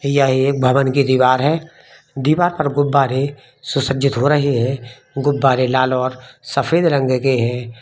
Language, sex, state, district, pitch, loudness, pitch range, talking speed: Hindi, male, Bihar, East Champaran, 135 Hz, -17 LUFS, 130-140 Hz, 155 wpm